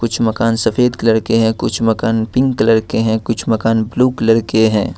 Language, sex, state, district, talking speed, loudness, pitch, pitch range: Hindi, male, Jharkhand, Ranchi, 215 wpm, -15 LUFS, 115 Hz, 110-115 Hz